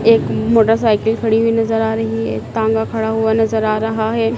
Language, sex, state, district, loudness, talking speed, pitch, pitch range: Hindi, female, Madhya Pradesh, Dhar, -16 LUFS, 205 wpm, 220 Hz, 220-225 Hz